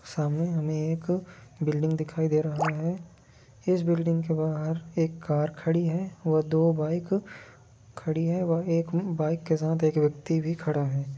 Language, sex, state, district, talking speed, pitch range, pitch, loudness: Hindi, male, Jharkhand, Jamtara, 170 wpm, 155-165 Hz, 160 Hz, -27 LUFS